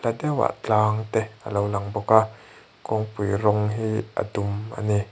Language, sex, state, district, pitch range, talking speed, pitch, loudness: Mizo, male, Mizoram, Aizawl, 105-110 Hz, 165 wpm, 110 Hz, -24 LUFS